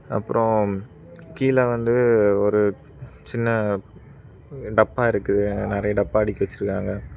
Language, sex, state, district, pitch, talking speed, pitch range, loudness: Tamil, male, Tamil Nadu, Kanyakumari, 105 Hz, 90 wpm, 100-120 Hz, -22 LUFS